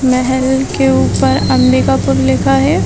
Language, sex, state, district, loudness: Hindi, female, Chhattisgarh, Balrampur, -12 LUFS